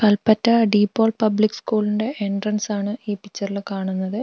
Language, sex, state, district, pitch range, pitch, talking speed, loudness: Malayalam, female, Kerala, Wayanad, 200-220 Hz, 210 Hz, 140 wpm, -21 LUFS